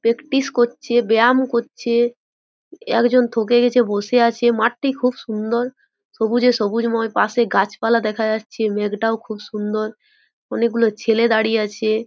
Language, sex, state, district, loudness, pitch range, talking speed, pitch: Bengali, female, West Bengal, Jhargram, -19 LUFS, 220-245 Hz, 130 wpm, 230 Hz